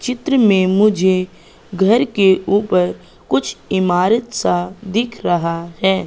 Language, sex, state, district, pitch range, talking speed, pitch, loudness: Hindi, female, Madhya Pradesh, Katni, 185-220 Hz, 120 wpm, 190 Hz, -16 LUFS